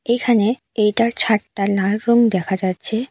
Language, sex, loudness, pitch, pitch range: Bengali, female, -18 LUFS, 215 Hz, 200-235 Hz